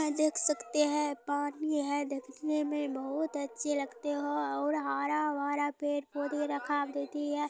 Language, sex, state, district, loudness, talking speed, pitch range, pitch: Maithili, female, Bihar, Supaul, -33 LUFS, 135 wpm, 285-295 Hz, 290 Hz